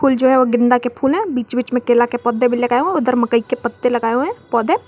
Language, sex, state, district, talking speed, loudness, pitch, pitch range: Hindi, female, Jharkhand, Garhwa, 305 wpm, -16 LUFS, 245 Hz, 240-255 Hz